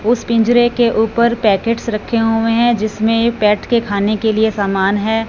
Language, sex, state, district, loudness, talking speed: Hindi, female, Punjab, Fazilka, -15 LUFS, 195 wpm